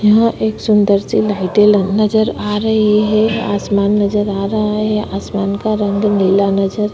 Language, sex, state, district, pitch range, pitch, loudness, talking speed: Hindi, female, Chhattisgarh, Korba, 200-215 Hz, 210 Hz, -14 LUFS, 175 wpm